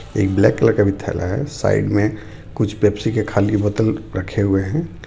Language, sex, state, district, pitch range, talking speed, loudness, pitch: Hindi, male, Jharkhand, Ranchi, 100-110 Hz, 200 wpm, -19 LUFS, 105 Hz